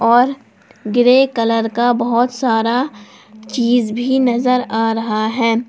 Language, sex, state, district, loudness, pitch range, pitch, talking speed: Hindi, female, Jharkhand, Palamu, -16 LUFS, 225-250 Hz, 235 Hz, 125 wpm